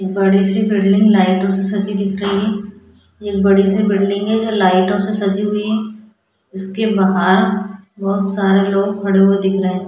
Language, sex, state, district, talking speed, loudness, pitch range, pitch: Hindi, female, Goa, North and South Goa, 190 wpm, -15 LUFS, 195-205 Hz, 195 Hz